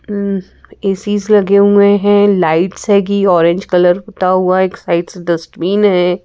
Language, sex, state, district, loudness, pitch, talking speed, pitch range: Hindi, female, Madhya Pradesh, Bhopal, -12 LUFS, 195 Hz, 155 wpm, 180-205 Hz